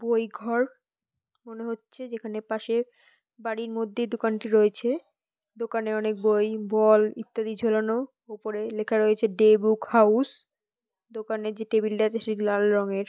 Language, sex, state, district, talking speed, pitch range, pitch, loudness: Bengali, female, West Bengal, North 24 Parganas, 135 wpm, 215-230 Hz, 220 Hz, -25 LUFS